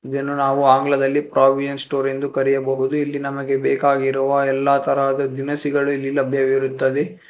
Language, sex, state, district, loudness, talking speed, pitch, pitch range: Kannada, male, Karnataka, Bangalore, -19 LUFS, 125 wpm, 140 Hz, 135-140 Hz